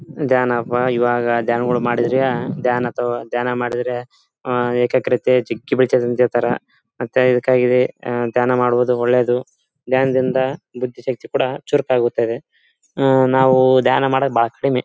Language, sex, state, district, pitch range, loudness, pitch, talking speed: Kannada, male, Karnataka, Bellary, 120-130 Hz, -18 LUFS, 125 Hz, 110 wpm